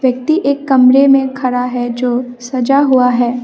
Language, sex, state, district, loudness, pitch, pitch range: Hindi, female, Assam, Kamrup Metropolitan, -13 LUFS, 255 Hz, 245-270 Hz